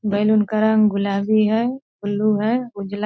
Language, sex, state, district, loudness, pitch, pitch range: Hindi, female, Bihar, Purnia, -19 LUFS, 215 Hz, 205-220 Hz